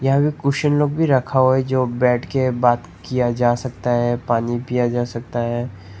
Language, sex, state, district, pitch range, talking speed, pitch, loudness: Hindi, male, Nagaland, Dimapur, 120-130 Hz, 210 wpm, 125 Hz, -19 LUFS